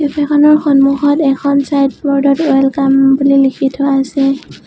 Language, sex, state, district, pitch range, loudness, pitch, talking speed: Assamese, female, Assam, Sonitpur, 270-290 Hz, -11 LUFS, 275 Hz, 115 wpm